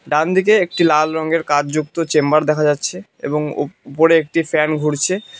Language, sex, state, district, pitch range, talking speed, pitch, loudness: Bengali, male, West Bengal, Cooch Behar, 150-165 Hz, 180 wpm, 155 Hz, -17 LUFS